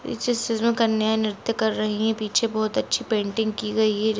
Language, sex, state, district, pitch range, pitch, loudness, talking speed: Hindi, female, Jharkhand, Jamtara, 215-230 Hz, 220 Hz, -23 LUFS, 215 wpm